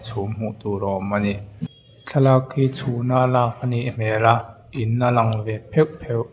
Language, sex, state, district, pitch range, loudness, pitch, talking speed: Mizo, male, Mizoram, Aizawl, 110-125 Hz, -21 LUFS, 115 Hz, 200 wpm